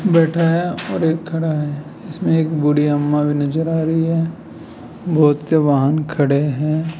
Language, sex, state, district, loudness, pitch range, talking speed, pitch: Hindi, male, Rajasthan, Jaipur, -17 LUFS, 150-165 Hz, 170 wpm, 160 Hz